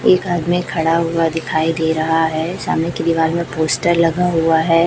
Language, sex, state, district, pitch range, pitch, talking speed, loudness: Hindi, male, Chhattisgarh, Raipur, 160-170 Hz, 165 Hz, 195 wpm, -17 LUFS